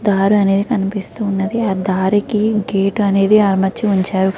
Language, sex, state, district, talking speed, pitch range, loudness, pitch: Telugu, female, Andhra Pradesh, Krishna, 135 wpm, 195-210 Hz, -16 LUFS, 200 Hz